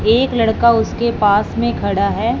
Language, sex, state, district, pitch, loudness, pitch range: Hindi, male, Punjab, Fazilka, 230 Hz, -15 LUFS, 220-235 Hz